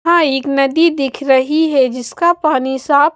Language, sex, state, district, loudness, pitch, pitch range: Hindi, female, Bihar, West Champaran, -14 LUFS, 280 Hz, 265-320 Hz